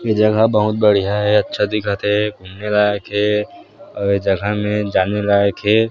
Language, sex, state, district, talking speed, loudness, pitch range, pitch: Chhattisgarhi, male, Chhattisgarh, Sarguja, 185 wpm, -17 LUFS, 100-105 Hz, 105 Hz